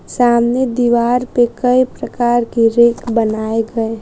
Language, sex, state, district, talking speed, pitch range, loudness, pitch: Hindi, female, Bihar, West Champaran, 150 wpm, 230-245 Hz, -14 LUFS, 235 Hz